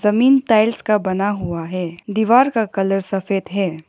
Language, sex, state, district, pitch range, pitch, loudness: Hindi, female, Arunachal Pradesh, Lower Dibang Valley, 185-220 Hz, 200 Hz, -18 LUFS